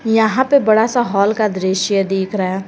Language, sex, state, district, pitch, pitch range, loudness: Hindi, female, Jharkhand, Garhwa, 210 Hz, 195-225 Hz, -15 LUFS